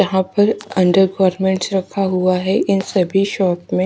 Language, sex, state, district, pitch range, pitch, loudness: Hindi, female, Haryana, Charkhi Dadri, 185-195 Hz, 190 Hz, -17 LUFS